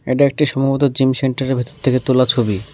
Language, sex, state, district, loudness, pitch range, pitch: Bengali, male, West Bengal, Alipurduar, -16 LUFS, 130-140 Hz, 130 Hz